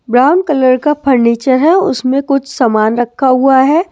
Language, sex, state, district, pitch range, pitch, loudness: Hindi, male, Delhi, New Delhi, 250-285 Hz, 265 Hz, -11 LUFS